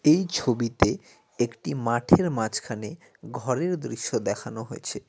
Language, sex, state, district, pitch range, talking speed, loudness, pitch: Bengali, male, West Bengal, Cooch Behar, 115-155 Hz, 105 wpm, -26 LUFS, 120 Hz